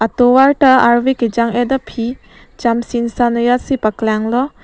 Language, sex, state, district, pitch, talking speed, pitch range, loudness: Karbi, female, Assam, Karbi Anglong, 240 Hz, 130 wpm, 235-260 Hz, -14 LUFS